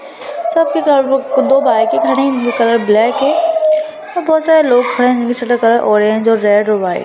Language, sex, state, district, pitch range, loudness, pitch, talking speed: Hindi, female, Bihar, Lakhisarai, 230-310 Hz, -12 LUFS, 255 Hz, 195 wpm